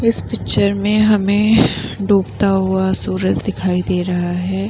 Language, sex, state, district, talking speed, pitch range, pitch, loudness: Hindi, female, Bihar, Vaishali, 140 wpm, 180-205 Hz, 195 Hz, -16 LUFS